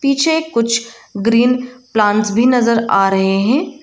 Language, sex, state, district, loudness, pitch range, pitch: Hindi, female, Arunachal Pradesh, Lower Dibang Valley, -14 LUFS, 215-255 Hz, 235 Hz